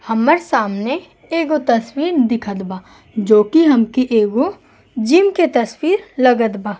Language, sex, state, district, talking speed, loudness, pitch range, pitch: Bhojpuri, female, Uttar Pradesh, Gorakhpur, 125 wpm, -16 LUFS, 220-315 Hz, 250 Hz